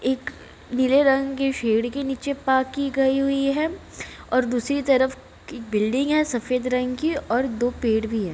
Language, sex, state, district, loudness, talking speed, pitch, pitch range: Hindi, female, Bihar, Jamui, -23 LUFS, 185 wpm, 260 Hz, 245-275 Hz